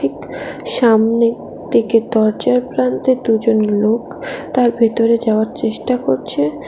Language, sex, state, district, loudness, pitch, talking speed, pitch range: Bengali, female, West Bengal, Alipurduar, -16 LUFS, 225 Hz, 100 wpm, 215-235 Hz